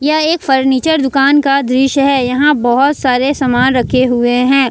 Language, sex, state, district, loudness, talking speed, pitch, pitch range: Hindi, female, Jharkhand, Ranchi, -12 LUFS, 180 wpm, 270 Hz, 255-280 Hz